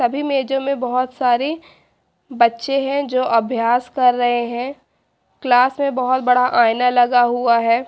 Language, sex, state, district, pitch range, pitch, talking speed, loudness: Hindi, female, Haryana, Charkhi Dadri, 240-270 Hz, 250 Hz, 150 wpm, -17 LUFS